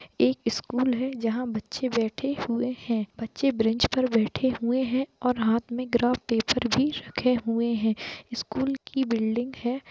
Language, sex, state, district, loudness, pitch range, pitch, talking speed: Hindi, male, Jharkhand, Jamtara, -27 LUFS, 230-255 Hz, 245 Hz, 175 wpm